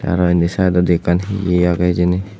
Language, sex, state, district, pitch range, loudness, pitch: Chakma, male, Tripura, West Tripura, 90-95 Hz, -16 LUFS, 90 Hz